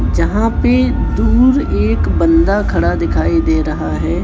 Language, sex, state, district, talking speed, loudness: Hindi, male, Chhattisgarh, Raipur, 140 wpm, -14 LUFS